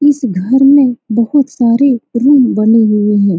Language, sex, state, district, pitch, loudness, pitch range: Hindi, female, Bihar, Saran, 245 Hz, -10 LUFS, 215-275 Hz